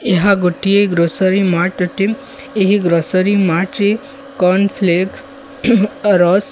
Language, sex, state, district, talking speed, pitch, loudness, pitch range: Odia, female, Odisha, Sambalpur, 120 wpm, 195 Hz, -14 LUFS, 180-220 Hz